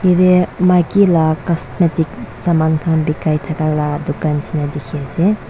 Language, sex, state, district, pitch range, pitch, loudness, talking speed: Nagamese, female, Nagaland, Dimapur, 155-180 Hz, 160 Hz, -16 LUFS, 140 wpm